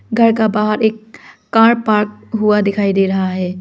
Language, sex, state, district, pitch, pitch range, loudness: Hindi, female, Arunachal Pradesh, Lower Dibang Valley, 215 Hz, 200-220 Hz, -15 LUFS